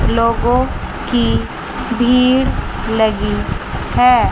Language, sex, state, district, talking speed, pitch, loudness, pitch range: Hindi, female, Chandigarh, Chandigarh, 70 wpm, 240 Hz, -16 LUFS, 225-250 Hz